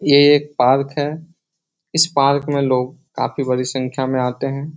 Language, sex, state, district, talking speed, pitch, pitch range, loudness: Hindi, male, Bihar, Jahanabad, 175 wpm, 140 Hz, 130-155 Hz, -18 LUFS